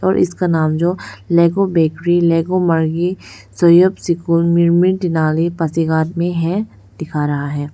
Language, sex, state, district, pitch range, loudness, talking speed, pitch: Hindi, female, Arunachal Pradesh, Lower Dibang Valley, 160-175 Hz, -15 LUFS, 140 wpm, 170 Hz